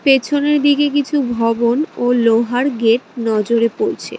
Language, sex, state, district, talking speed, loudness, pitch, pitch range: Bengali, female, West Bengal, Cooch Behar, 130 wpm, -16 LUFS, 245 Hz, 230-285 Hz